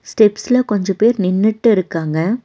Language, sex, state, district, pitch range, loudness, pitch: Tamil, female, Tamil Nadu, Nilgiris, 190-225 Hz, -15 LUFS, 210 Hz